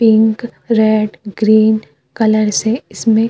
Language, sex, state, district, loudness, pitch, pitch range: Hindi, female, Uttar Pradesh, Jyotiba Phule Nagar, -14 LUFS, 220 Hz, 215-225 Hz